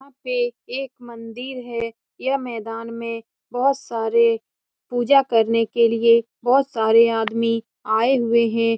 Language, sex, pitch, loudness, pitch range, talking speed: Hindi, female, 230 Hz, -20 LUFS, 230-250 Hz, 135 wpm